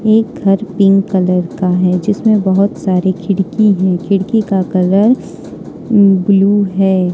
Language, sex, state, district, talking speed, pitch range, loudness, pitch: Hindi, female, Jharkhand, Ranchi, 135 wpm, 185-205 Hz, -12 LUFS, 195 Hz